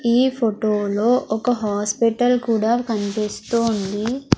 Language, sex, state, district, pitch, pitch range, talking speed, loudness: Telugu, female, Andhra Pradesh, Sri Satya Sai, 225 Hz, 210-240 Hz, 110 wpm, -20 LUFS